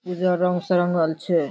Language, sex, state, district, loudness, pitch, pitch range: Maithili, female, Bihar, Darbhanga, -22 LUFS, 180 Hz, 165-180 Hz